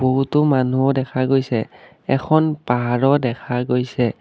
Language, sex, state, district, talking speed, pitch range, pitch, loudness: Assamese, male, Assam, Kamrup Metropolitan, 115 wpm, 125-135 Hz, 130 Hz, -19 LUFS